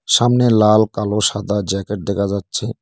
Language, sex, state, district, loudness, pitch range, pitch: Bengali, male, West Bengal, Cooch Behar, -17 LUFS, 100-110 Hz, 105 Hz